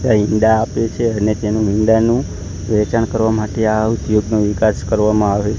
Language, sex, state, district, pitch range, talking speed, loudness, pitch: Gujarati, male, Gujarat, Gandhinagar, 105-110 Hz, 160 wpm, -16 LUFS, 110 Hz